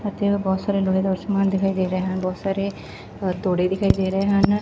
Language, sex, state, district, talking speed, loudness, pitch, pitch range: Punjabi, female, Punjab, Fazilka, 235 wpm, -22 LUFS, 195 Hz, 185-200 Hz